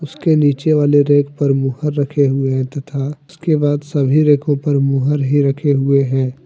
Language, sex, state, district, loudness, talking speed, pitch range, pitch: Hindi, male, Jharkhand, Deoghar, -15 LUFS, 185 wpm, 135-145 Hz, 145 Hz